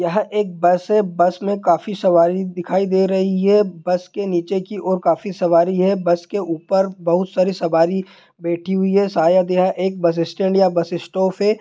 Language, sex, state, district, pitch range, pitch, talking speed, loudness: Hindi, male, Bihar, Jahanabad, 175-195 Hz, 185 Hz, 195 wpm, -18 LUFS